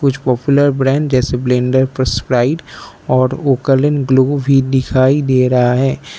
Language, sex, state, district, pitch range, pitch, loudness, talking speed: Hindi, male, Arunachal Pradesh, Lower Dibang Valley, 130-140 Hz, 130 Hz, -14 LUFS, 135 wpm